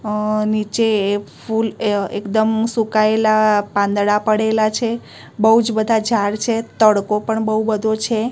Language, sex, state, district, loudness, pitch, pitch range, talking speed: Gujarati, female, Gujarat, Gandhinagar, -17 LUFS, 215 Hz, 210-225 Hz, 145 wpm